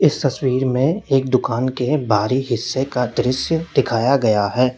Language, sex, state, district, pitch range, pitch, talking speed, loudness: Hindi, male, Uttar Pradesh, Lalitpur, 125-135 Hz, 130 Hz, 165 wpm, -19 LUFS